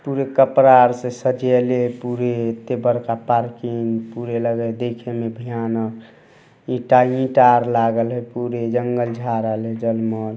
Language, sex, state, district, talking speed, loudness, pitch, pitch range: Hindi, male, Bihar, Samastipur, 150 wpm, -19 LUFS, 120 Hz, 115-125 Hz